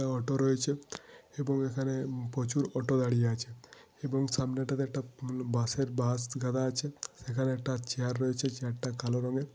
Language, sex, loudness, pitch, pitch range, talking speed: Bengali, male, -33 LUFS, 130 Hz, 125-135 Hz, 150 wpm